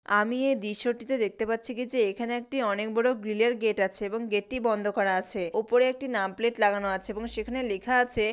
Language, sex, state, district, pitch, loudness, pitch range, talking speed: Bengali, female, West Bengal, Malda, 225 Hz, -27 LUFS, 205-245 Hz, 230 wpm